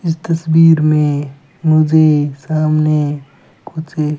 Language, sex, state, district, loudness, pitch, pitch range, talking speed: Hindi, male, Rajasthan, Bikaner, -13 LUFS, 155 Hz, 150-160 Hz, 100 wpm